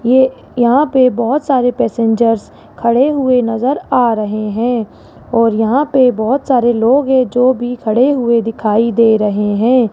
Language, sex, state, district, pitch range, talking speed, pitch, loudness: Hindi, female, Rajasthan, Jaipur, 225-260 Hz, 165 wpm, 240 Hz, -13 LUFS